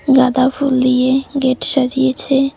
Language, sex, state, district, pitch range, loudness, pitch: Bengali, female, West Bengal, Cooch Behar, 255-270 Hz, -15 LUFS, 265 Hz